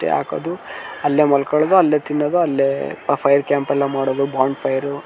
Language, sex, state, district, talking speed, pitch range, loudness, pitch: Kannada, male, Karnataka, Dharwad, 165 wpm, 140-150 Hz, -18 LUFS, 140 Hz